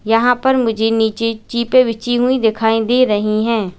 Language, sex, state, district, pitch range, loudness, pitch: Hindi, female, Uttar Pradesh, Lalitpur, 220-245 Hz, -15 LUFS, 230 Hz